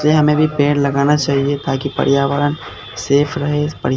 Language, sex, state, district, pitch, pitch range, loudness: Hindi, male, Bihar, Katihar, 145 Hz, 140-150 Hz, -16 LUFS